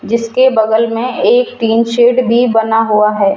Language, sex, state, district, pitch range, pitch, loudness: Hindi, female, Rajasthan, Jaipur, 225-245 Hz, 230 Hz, -11 LUFS